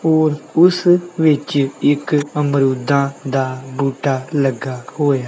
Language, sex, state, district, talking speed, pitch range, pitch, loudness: Punjabi, male, Punjab, Kapurthala, 100 wpm, 135-155 Hz, 140 Hz, -17 LUFS